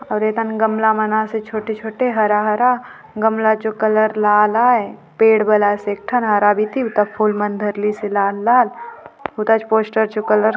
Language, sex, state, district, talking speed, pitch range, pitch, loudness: Halbi, female, Chhattisgarh, Bastar, 170 wpm, 210-220 Hz, 215 Hz, -17 LUFS